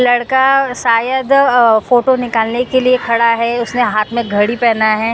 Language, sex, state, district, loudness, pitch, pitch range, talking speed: Hindi, female, Maharashtra, Mumbai Suburban, -13 LUFS, 240 Hz, 230-255 Hz, 175 wpm